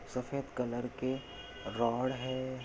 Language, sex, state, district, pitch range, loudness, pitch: Hindi, male, Maharashtra, Pune, 120-130 Hz, -36 LUFS, 125 Hz